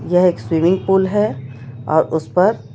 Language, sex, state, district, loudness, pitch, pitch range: Hindi, female, Chhattisgarh, Raipur, -17 LUFS, 160 Hz, 125-180 Hz